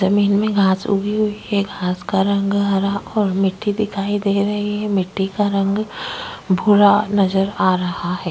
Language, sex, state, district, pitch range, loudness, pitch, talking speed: Hindi, female, Uttar Pradesh, Jyotiba Phule Nagar, 195-205 Hz, -18 LUFS, 200 Hz, 175 wpm